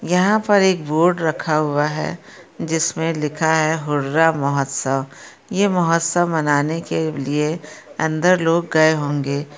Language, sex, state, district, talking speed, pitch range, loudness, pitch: Hindi, female, Maharashtra, Pune, 130 wpm, 150-170 Hz, -19 LUFS, 160 Hz